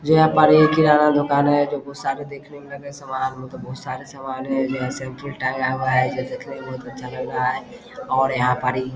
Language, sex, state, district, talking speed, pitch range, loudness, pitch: Hindi, male, Bihar, Vaishali, 220 wpm, 130-145 Hz, -20 LUFS, 135 Hz